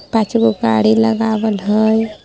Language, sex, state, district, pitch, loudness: Magahi, female, Jharkhand, Palamu, 215 Hz, -15 LUFS